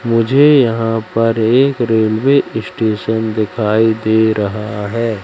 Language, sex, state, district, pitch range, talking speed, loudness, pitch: Hindi, male, Madhya Pradesh, Katni, 110-115 Hz, 115 wpm, -14 LUFS, 110 Hz